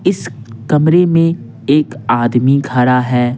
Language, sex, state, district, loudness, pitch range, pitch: Hindi, male, Bihar, Patna, -13 LUFS, 125-165 Hz, 135 Hz